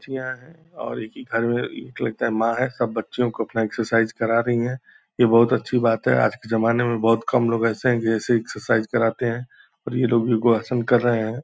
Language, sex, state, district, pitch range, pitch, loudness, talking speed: Hindi, male, Bihar, Purnia, 115-125 Hz, 115 Hz, -22 LUFS, 245 wpm